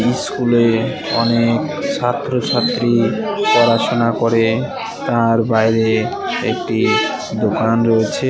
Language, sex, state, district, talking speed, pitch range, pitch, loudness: Bengali, male, West Bengal, Cooch Behar, 70 wpm, 115-120 Hz, 115 Hz, -16 LUFS